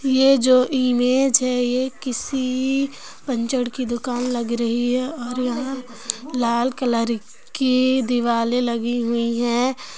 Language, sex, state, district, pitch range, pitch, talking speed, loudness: Hindi, male, Andhra Pradesh, Anantapur, 240-260 Hz, 250 Hz, 125 wpm, -21 LUFS